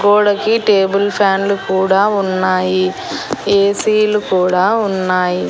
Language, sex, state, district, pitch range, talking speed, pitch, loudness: Telugu, female, Andhra Pradesh, Annamaya, 185-205 Hz, 110 wpm, 195 Hz, -14 LUFS